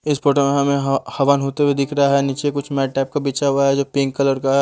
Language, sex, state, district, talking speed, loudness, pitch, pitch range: Hindi, male, Haryana, Charkhi Dadri, 270 wpm, -18 LUFS, 140 Hz, 135-140 Hz